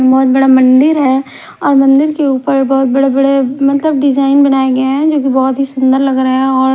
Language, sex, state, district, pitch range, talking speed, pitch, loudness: Hindi, female, Odisha, Khordha, 265-275 Hz, 220 wpm, 270 Hz, -10 LUFS